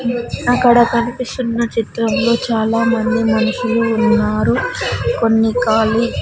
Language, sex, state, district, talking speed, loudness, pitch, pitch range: Telugu, female, Andhra Pradesh, Sri Satya Sai, 85 wpm, -15 LUFS, 235 Hz, 225-240 Hz